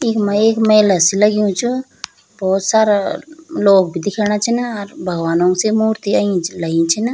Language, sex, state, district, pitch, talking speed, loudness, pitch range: Garhwali, female, Uttarakhand, Tehri Garhwal, 210 Hz, 160 wpm, -15 LUFS, 190-220 Hz